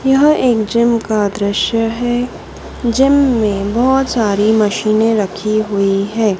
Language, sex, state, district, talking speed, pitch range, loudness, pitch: Hindi, female, Madhya Pradesh, Dhar, 130 wpm, 210-245 Hz, -14 LUFS, 225 Hz